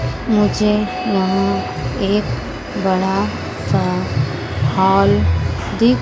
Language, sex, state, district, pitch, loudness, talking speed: Hindi, female, Madhya Pradesh, Dhar, 135 Hz, -18 LUFS, 50 wpm